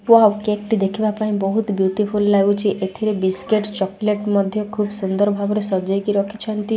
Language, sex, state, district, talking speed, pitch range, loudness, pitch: Odia, female, Odisha, Malkangiri, 160 wpm, 195-210 Hz, -19 LUFS, 205 Hz